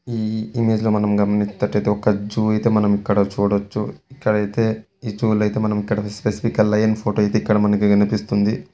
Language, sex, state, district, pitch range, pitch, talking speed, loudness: Telugu, male, Telangana, Karimnagar, 105-110 Hz, 105 Hz, 150 wpm, -19 LUFS